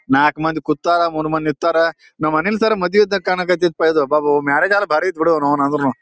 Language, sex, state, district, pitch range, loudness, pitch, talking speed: Kannada, male, Karnataka, Bijapur, 150-180 Hz, -17 LUFS, 160 Hz, 200 wpm